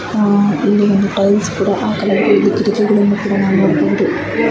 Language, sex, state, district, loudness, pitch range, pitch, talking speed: Kannada, female, Karnataka, Bijapur, -14 LUFS, 195-205 Hz, 205 Hz, 145 wpm